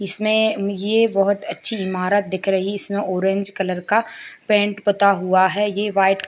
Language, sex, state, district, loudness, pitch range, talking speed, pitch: Hindi, male, Bihar, Bhagalpur, -19 LUFS, 195-210 Hz, 170 wpm, 200 Hz